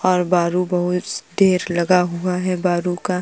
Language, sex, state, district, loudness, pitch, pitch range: Hindi, female, Uttar Pradesh, Jalaun, -19 LUFS, 180 Hz, 175-180 Hz